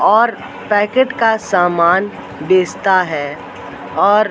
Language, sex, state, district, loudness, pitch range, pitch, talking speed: Hindi, male, Madhya Pradesh, Katni, -14 LUFS, 175-220 Hz, 200 Hz, 95 wpm